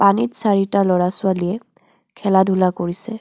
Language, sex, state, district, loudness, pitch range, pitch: Assamese, female, Assam, Kamrup Metropolitan, -18 LUFS, 185-205 Hz, 195 Hz